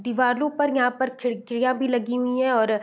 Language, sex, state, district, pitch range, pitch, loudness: Hindi, female, Bihar, Gopalganj, 245-260 Hz, 250 Hz, -23 LUFS